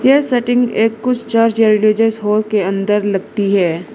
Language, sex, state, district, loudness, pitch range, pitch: Hindi, female, Arunachal Pradesh, Lower Dibang Valley, -14 LUFS, 205-230 Hz, 220 Hz